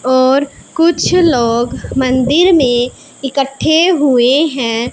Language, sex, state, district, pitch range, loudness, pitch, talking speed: Hindi, female, Punjab, Pathankot, 250-320 Hz, -12 LUFS, 270 Hz, 95 wpm